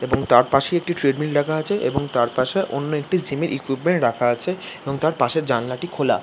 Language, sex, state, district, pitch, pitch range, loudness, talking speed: Bengali, male, West Bengal, Kolkata, 145 Hz, 130-170 Hz, -21 LUFS, 185 wpm